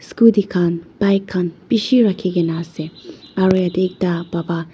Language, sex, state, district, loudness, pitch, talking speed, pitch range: Nagamese, female, Nagaland, Dimapur, -18 LUFS, 180 Hz, 140 wpm, 170-195 Hz